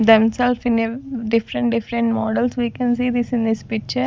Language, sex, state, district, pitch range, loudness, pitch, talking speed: English, female, Maharashtra, Gondia, 225-245 Hz, -20 LUFS, 235 Hz, 190 wpm